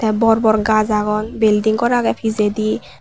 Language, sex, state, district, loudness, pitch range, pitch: Chakma, female, Tripura, West Tripura, -16 LUFS, 215-225 Hz, 220 Hz